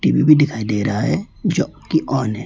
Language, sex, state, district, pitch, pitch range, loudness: Hindi, male, West Bengal, Alipurduar, 115 Hz, 110-145 Hz, -18 LUFS